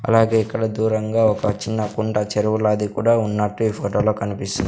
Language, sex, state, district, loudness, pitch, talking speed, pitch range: Telugu, male, Andhra Pradesh, Sri Satya Sai, -20 LUFS, 110 Hz, 180 wpm, 105-110 Hz